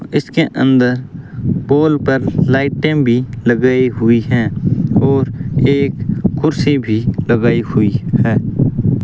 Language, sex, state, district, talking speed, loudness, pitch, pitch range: Hindi, male, Rajasthan, Bikaner, 105 wpm, -14 LUFS, 135 Hz, 120-145 Hz